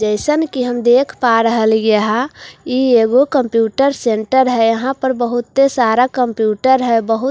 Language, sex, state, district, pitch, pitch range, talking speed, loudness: Hindi, female, Bihar, Katihar, 245 Hz, 225-265 Hz, 190 wpm, -14 LUFS